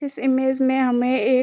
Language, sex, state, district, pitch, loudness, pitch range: Hindi, female, Uttarakhand, Uttarkashi, 260 Hz, -20 LUFS, 255-265 Hz